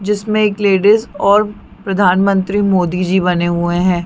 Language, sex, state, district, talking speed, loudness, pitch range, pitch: Hindi, female, Chhattisgarh, Bilaspur, 150 wpm, -14 LUFS, 180-205 Hz, 195 Hz